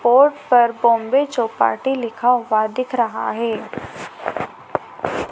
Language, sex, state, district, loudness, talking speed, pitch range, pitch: Hindi, female, Madhya Pradesh, Dhar, -19 LUFS, 100 wpm, 230-255 Hz, 240 Hz